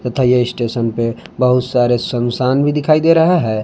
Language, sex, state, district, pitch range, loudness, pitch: Hindi, male, Jharkhand, Palamu, 120-135 Hz, -15 LUFS, 125 Hz